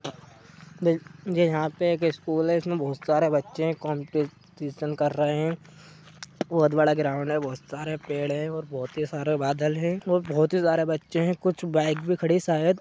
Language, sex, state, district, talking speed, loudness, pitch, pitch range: Hindi, male, Jharkhand, Sahebganj, 180 wpm, -26 LUFS, 155 Hz, 150-165 Hz